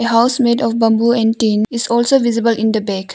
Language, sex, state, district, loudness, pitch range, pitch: English, female, Arunachal Pradesh, Longding, -14 LUFS, 220-235 Hz, 230 Hz